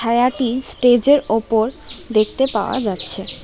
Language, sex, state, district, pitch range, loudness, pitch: Bengali, female, West Bengal, Alipurduar, 220-260 Hz, -17 LUFS, 240 Hz